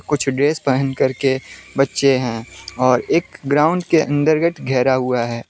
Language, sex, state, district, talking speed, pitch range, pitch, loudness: Hindi, male, Jharkhand, Deoghar, 155 wpm, 125-145 Hz, 135 Hz, -18 LUFS